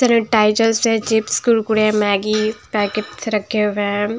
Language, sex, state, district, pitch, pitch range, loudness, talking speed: Hindi, female, Bihar, Patna, 215 Hz, 210-225 Hz, -17 LUFS, 145 wpm